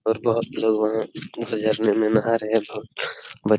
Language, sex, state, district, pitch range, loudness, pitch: Hindi, male, Bihar, Jamui, 110-115 Hz, -23 LUFS, 110 Hz